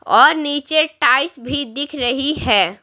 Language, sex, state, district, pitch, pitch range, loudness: Hindi, female, Bihar, Patna, 285 Hz, 270-305 Hz, -16 LUFS